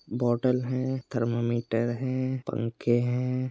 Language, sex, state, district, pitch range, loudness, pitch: Hindi, male, Uttar Pradesh, Jyotiba Phule Nagar, 120-130 Hz, -28 LUFS, 125 Hz